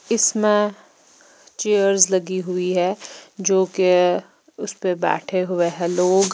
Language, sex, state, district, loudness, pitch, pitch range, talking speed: Hindi, female, Bihar, Patna, -19 LUFS, 185 Hz, 180-205 Hz, 115 wpm